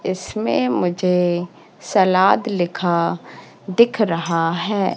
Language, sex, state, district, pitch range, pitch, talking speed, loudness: Hindi, female, Madhya Pradesh, Katni, 175-195 Hz, 180 Hz, 85 wpm, -19 LUFS